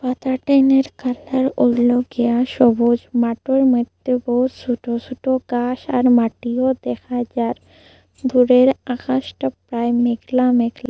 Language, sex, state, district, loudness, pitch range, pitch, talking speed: Bengali, female, Assam, Hailakandi, -18 LUFS, 240-260 Hz, 250 Hz, 95 wpm